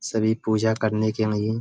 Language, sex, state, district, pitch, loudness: Hindi, male, Uttar Pradesh, Budaun, 110 Hz, -23 LUFS